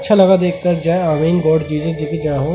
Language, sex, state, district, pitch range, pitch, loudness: Hindi, male, Delhi, New Delhi, 155-180 Hz, 165 Hz, -15 LUFS